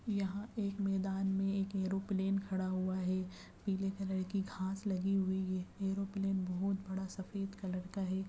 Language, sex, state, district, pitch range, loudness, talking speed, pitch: Hindi, female, Bihar, Madhepura, 190-195 Hz, -38 LUFS, 160 wpm, 195 Hz